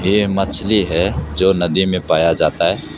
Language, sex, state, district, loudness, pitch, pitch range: Hindi, male, Arunachal Pradesh, Papum Pare, -16 LUFS, 95 Hz, 85-100 Hz